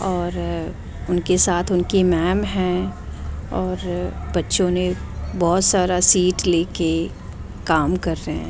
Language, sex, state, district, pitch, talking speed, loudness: Hindi, female, Delhi, New Delhi, 175 Hz, 120 wpm, -20 LUFS